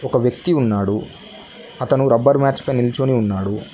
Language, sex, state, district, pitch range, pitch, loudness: Telugu, male, Telangana, Mahabubabad, 110-135 Hz, 125 Hz, -18 LUFS